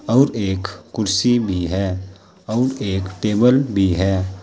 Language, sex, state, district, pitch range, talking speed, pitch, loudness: Hindi, male, Uttar Pradesh, Saharanpur, 95-120 Hz, 135 wpm, 100 Hz, -19 LUFS